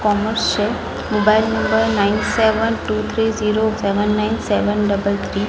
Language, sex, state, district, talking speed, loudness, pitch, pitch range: Gujarati, female, Gujarat, Gandhinagar, 165 wpm, -18 LUFS, 210 Hz, 205-220 Hz